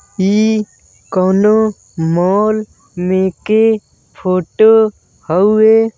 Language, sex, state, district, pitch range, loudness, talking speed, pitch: Bhojpuri, male, Uttar Pradesh, Deoria, 185-220 Hz, -13 LUFS, 70 wpm, 210 Hz